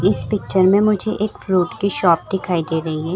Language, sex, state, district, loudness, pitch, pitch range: Hindi, female, Bihar, Madhepura, -18 LUFS, 185 Hz, 170-200 Hz